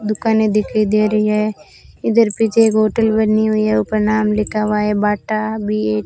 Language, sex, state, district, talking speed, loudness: Hindi, female, Rajasthan, Bikaner, 200 wpm, -16 LUFS